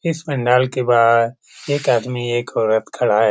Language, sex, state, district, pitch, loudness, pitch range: Hindi, male, Bihar, Lakhisarai, 125 Hz, -18 LUFS, 120-140 Hz